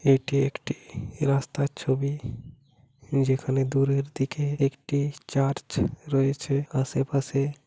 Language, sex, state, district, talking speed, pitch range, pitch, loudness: Bengali, male, West Bengal, Paschim Medinipur, 85 wpm, 135-140 Hz, 135 Hz, -27 LUFS